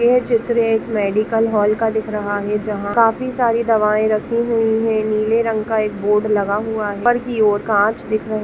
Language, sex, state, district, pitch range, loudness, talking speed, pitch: Hindi, female, Bihar, Lakhisarai, 210-230 Hz, -18 LUFS, 230 wpm, 220 Hz